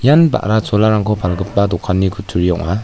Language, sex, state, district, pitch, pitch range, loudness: Garo, male, Meghalaya, West Garo Hills, 100 Hz, 90-110 Hz, -15 LUFS